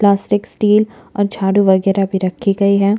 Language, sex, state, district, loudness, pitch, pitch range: Hindi, female, Chhattisgarh, Jashpur, -15 LUFS, 200 Hz, 195-205 Hz